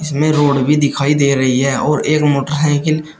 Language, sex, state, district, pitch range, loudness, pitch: Hindi, male, Uttar Pradesh, Shamli, 140-150 Hz, -14 LUFS, 145 Hz